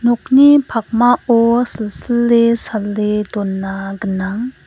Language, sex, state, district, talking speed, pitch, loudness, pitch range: Garo, female, Meghalaya, West Garo Hills, 75 wpm, 230 Hz, -15 LUFS, 205-240 Hz